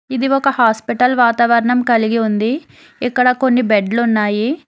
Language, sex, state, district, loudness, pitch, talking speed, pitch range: Telugu, female, Telangana, Hyderabad, -15 LUFS, 240 Hz, 130 wpm, 225-255 Hz